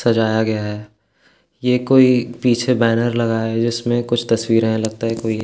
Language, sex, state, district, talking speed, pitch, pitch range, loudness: Hindi, male, Uttarakhand, Tehri Garhwal, 200 wpm, 115 Hz, 110-120 Hz, -17 LUFS